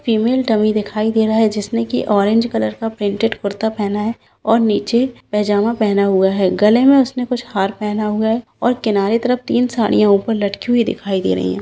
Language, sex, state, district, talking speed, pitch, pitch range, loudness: Hindi, female, Bihar, Jahanabad, 205 wpm, 220 Hz, 205-230 Hz, -16 LUFS